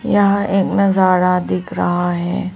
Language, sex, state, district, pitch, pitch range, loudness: Hindi, female, Arunachal Pradesh, Papum Pare, 185 Hz, 175-195 Hz, -16 LUFS